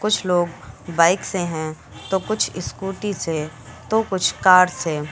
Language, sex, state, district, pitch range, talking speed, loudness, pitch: Hindi, female, Uttar Pradesh, Lucknow, 155-190 Hz, 155 wpm, -20 LUFS, 175 Hz